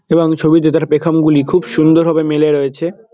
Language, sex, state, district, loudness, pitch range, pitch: Bengali, male, West Bengal, Dakshin Dinajpur, -13 LUFS, 155-165 Hz, 160 Hz